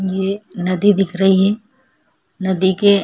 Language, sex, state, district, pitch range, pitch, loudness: Hindi, female, Chhattisgarh, Kabirdham, 190-205 Hz, 195 Hz, -17 LUFS